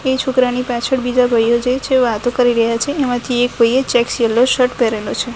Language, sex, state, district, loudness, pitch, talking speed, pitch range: Gujarati, female, Gujarat, Gandhinagar, -15 LUFS, 245 Hz, 210 wpm, 235-255 Hz